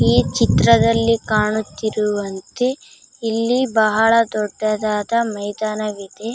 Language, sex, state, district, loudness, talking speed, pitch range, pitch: Kannada, female, Karnataka, Raichur, -18 LUFS, 75 wpm, 210-230 Hz, 220 Hz